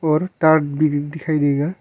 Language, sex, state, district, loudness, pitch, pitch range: Hindi, male, Arunachal Pradesh, Longding, -18 LUFS, 155 Hz, 145-160 Hz